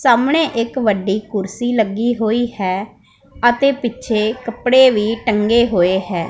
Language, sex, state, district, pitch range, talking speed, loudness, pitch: Punjabi, female, Punjab, Pathankot, 210-245 Hz, 135 wpm, -16 LUFS, 230 Hz